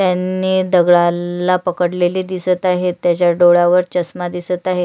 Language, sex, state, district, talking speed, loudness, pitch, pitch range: Marathi, female, Maharashtra, Sindhudurg, 125 wpm, -15 LUFS, 180 Hz, 175-185 Hz